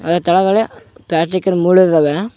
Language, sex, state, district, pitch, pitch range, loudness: Kannada, male, Karnataka, Koppal, 180 Hz, 170-190 Hz, -14 LUFS